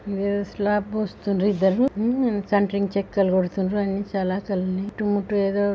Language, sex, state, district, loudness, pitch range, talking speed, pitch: Telugu, female, Telangana, Nalgonda, -23 LUFS, 195-205 Hz, 180 wpm, 200 Hz